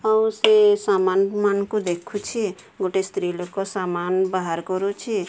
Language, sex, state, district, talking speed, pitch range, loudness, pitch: Odia, female, Odisha, Sambalpur, 125 wpm, 185-215 Hz, -22 LUFS, 195 Hz